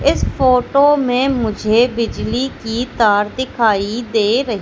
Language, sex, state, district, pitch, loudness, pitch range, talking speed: Hindi, female, Madhya Pradesh, Katni, 235 Hz, -16 LUFS, 220-260 Hz, 130 wpm